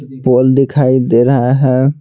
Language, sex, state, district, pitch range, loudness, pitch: Hindi, male, Bihar, Patna, 130-135 Hz, -11 LUFS, 130 Hz